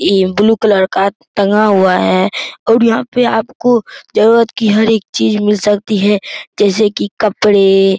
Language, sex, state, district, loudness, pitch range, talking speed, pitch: Hindi, male, Bihar, Araria, -12 LUFS, 195-225 Hz, 170 wpm, 210 Hz